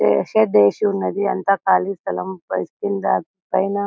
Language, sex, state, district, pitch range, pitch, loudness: Telugu, female, Telangana, Karimnagar, 185-200 Hz, 195 Hz, -19 LUFS